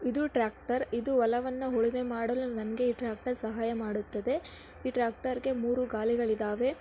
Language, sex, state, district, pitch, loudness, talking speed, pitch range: Kannada, female, Karnataka, Dakshina Kannada, 240 Hz, -31 LUFS, 140 wpm, 225-255 Hz